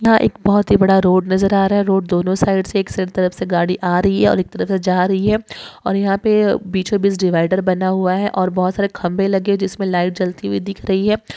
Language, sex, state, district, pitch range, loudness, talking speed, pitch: Hindi, female, Maharashtra, Chandrapur, 185-200 Hz, -17 LUFS, 255 wpm, 190 Hz